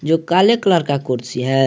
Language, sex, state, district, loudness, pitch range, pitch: Hindi, male, Jharkhand, Garhwa, -16 LUFS, 130-180 Hz, 150 Hz